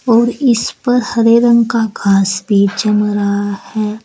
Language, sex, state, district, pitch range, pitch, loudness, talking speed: Hindi, female, Uttar Pradesh, Saharanpur, 200-235 Hz, 215 Hz, -13 LUFS, 150 wpm